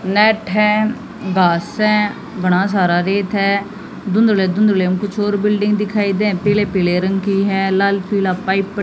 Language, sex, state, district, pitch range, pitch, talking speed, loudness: Hindi, female, Haryana, Jhajjar, 190-210 Hz, 200 Hz, 165 wpm, -16 LUFS